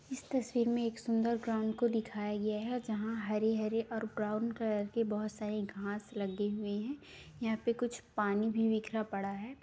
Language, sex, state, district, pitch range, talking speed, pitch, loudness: Hindi, female, Bihar, Samastipur, 210-230 Hz, 185 wpm, 220 Hz, -36 LUFS